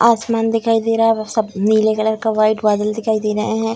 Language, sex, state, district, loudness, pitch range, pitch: Hindi, female, Bihar, Darbhanga, -17 LUFS, 215-225 Hz, 220 Hz